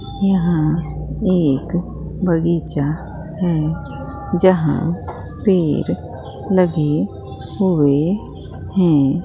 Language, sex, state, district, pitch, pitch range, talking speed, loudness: Hindi, female, Bihar, Katihar, 165 Hz, 150-180 Hz, 60 wpm, -18 LUFS